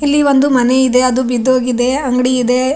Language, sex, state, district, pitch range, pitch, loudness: Kannada, female, Karnataka, Raichur, 250-270 Hz, 255 Hz, -13 LUFS